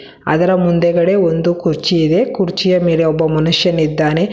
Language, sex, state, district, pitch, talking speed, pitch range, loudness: Kannada, female, Karnataka, Bangalore, 170 Hz, 125 wpm, 160-180 Hz, -14 LUFS